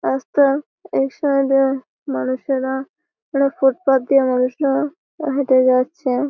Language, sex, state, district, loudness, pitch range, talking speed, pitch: Bengali, female, West Bengal, Malda, -18 LUFS, 260-280 Hz, 115 wpm, 270 Hz